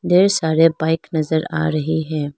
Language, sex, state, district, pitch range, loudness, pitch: Hindi, female, Arunachal Pradesh, Lower Dibang Valley, 155-165 Hz, -18 LUFS, 160 Hz